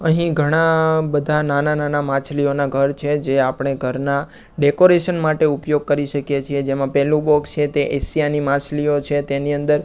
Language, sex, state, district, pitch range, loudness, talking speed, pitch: Gujarati, male, Gujarat, Gandhinagar, 140-150 Hz, -18 LUFS, 170 wpm, 145 Hz